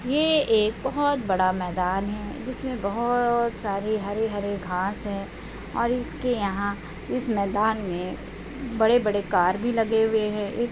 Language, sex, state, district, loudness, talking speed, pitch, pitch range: Hindi, female, Bihar, Araria, -25 LUFS, 155 wpm, 215 Hz, 200-240 Hz